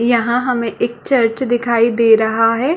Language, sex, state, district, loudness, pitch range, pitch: Hindi, female, Chhattisgarh, Balrampur, -15 LUFS, 230-245 Hz, 235 Hz